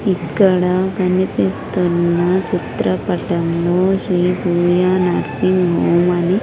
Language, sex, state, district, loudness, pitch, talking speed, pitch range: Telugu, female, Andhra Pradesh, Sri Satya Sai, -16 LUFS, 180 Hz, 85 wpm, 175-185 Hz